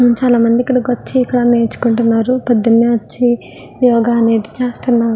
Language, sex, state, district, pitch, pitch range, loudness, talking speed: Telugu, female, Andhra Pradesh, Visakhapatnam, 240 Hz, 230-250 Hz, -13 LUFS, 130 wpm